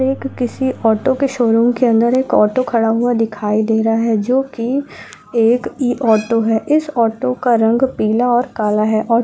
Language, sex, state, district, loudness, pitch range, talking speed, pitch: Hindi, female, Uttarakhand, Uttarkashi, -15 LUFS, 225-255 Hz, 195 wpm, 235 Hz